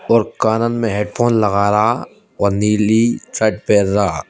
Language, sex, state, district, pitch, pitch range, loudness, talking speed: Hindi, male, Madhya Pradesh, Bhopal, 105 Hz, 105-115 Hz, -16 LUFS, 165 wpm